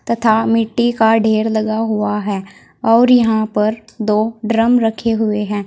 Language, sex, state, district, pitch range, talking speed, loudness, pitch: Hindi, female, Uttar Pradesh, Saharanpur, 215-230 Hz, 160 wpm, -15 LUFS, 220 Hz